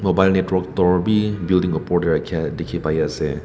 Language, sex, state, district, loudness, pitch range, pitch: Nagamese, male, Nagaland, Kohima, -20 LUFS, 90-95 Hz, 90 Hz